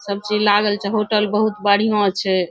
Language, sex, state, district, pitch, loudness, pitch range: Maithili, female, Bihar, Saharsa, 210 Hz, -18 LUFS, 200-210 Hz